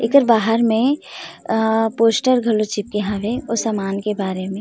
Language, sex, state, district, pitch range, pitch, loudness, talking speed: Chhattisgarhi, female, Chhattisgarh, Rajnandgaon, 205-230 Hz, 225 Hz, -18 LUFS, 170 wpm